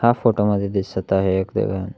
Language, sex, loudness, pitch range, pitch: Marathi, male, -20 LUFS, 95-110 Hz, 100 Hz